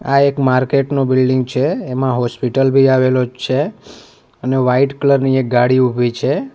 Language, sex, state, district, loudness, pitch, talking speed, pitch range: Gujarati, male, Gujarat, Valsad, -15 LUFS, 130 Hz, 175 wpm, 125-135 Hz